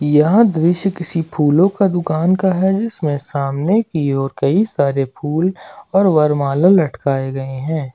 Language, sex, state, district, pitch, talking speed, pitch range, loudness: Hindi, male, Jharkhand, Ranchi, 160 Hz, 150 wpm, 140-190 Hz, -16 LUFS